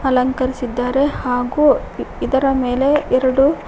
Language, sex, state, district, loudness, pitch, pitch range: Kannada, female, Karnataka, Koppal, -17 LUFS, 260 Hz, 250-275 Hz